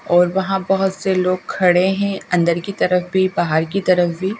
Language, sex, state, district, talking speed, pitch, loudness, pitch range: Hindi, female, Bihar, Katihar, 205 wpm, 185 Hz, -18 LUFS, 175-195 Hz